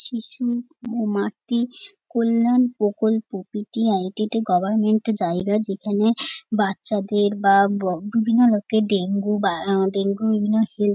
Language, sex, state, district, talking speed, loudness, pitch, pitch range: Bengali, female, West Bengal, North 24 Parganas, 120 wpm, -21 LUFS, 215 Hz, 200-230 Hz